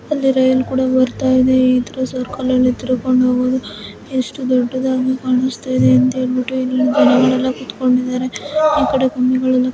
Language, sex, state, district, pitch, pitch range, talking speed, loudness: Kannada, female, Karnataka, Dharwad, 255 Hz, 255-260 Hz, 125 wpm, -16 LUFS